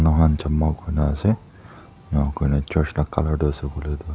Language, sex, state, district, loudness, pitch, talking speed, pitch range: Nagamese, male, Nagaland, Dimapur, -22 LUFS, 75 Hz, 175 wpm, 75-80 Hz